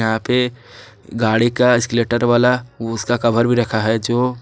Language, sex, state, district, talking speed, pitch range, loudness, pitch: Hindi, male, Jharkhand, Garhwa, 175 wpm, 115-120 Hz, -17 LUFS, 120 Hz